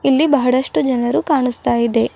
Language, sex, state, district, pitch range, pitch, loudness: Kannada, female, Karnataka, Bidar, 240-275 Hz, 255 Hz, -16 LUFS